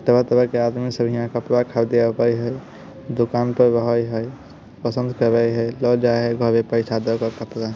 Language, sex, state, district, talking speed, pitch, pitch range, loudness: Hindi, male, Bihar, Samastipur, 145 wpm, 120 Hz, 115-120 Hz, -20 LUFS